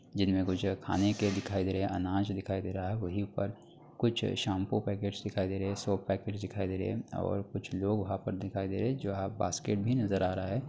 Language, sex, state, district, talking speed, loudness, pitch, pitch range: Hindi, male, Bihar, Begusarai, 245 wpm, -33 LUFS, 100 Hz, 95-105 Hz